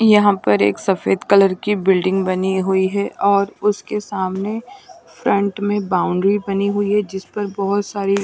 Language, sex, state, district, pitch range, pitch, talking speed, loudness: Hindi, female, Punjab, Pathankot, 190-205 Hz, 200 Hz, 160 wpm, -18 LUFS